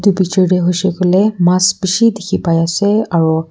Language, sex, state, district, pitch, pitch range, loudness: Nagamese, female, Nagaland, Kohima, 185 Hz, 175-200 Hz, -13 LUFS